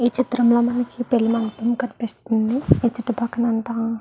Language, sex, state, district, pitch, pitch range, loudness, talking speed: Telugu, female, Andhra Pradesh, Guntur, 235 Hz, 230-245 Hz, -21 LUFS, 150 wpm